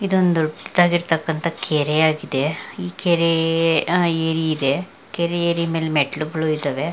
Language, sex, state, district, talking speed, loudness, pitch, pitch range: Kannada, female, Karnataka, Mysore, 130 wpm, -19 LUFS, 165 Hz, 155-170 Hz